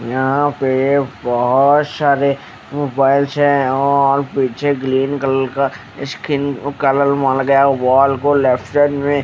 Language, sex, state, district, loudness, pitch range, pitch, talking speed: Hindi, male, Haryana, Charkhi Dadri, -15 LUFS, 135-140 Hz, 140 Hz, 130 wpm